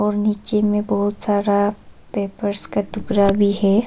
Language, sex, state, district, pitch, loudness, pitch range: Hindi, female, Arunachal Pradesh, Papum Pare, 205 Hz, -20 LUFS, 200-210 Hz